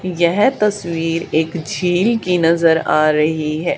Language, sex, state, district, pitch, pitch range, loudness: Hindi, female, Haryana, Charkhi Dadri, 170 Hz, 160-180 Hz, -16 LUFS